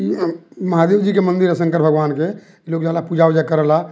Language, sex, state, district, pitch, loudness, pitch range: Bhojpuri, male, Bihar, Muzaffarpur, 165 Hz, -17 LUFS, 160-180 Hz